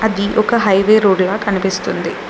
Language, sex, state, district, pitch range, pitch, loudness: Telugu, female, Telangana, Mahabubabad, 195-215 Hz, 200 Hz, -14 LUFS